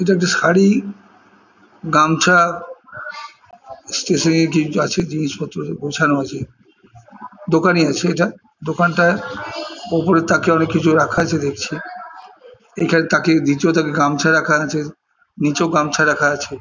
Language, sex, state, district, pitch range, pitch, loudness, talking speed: Bengali, male, West Bengal, Purulia, 155-185 Hz, 165 Hz, -16 LUFS, 120 wpm